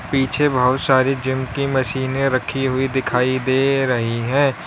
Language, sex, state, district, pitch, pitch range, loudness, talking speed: Hindi, male, Uttar Pradesh, Lalitpur, 130 Hz, 130-135 Hz, -19 LUFS, 155 wpm